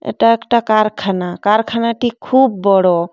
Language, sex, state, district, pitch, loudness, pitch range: Bengali, female, West Bengal, Paschim Medinipur, 215 Hz, -14 LUFS, 195-230 Hz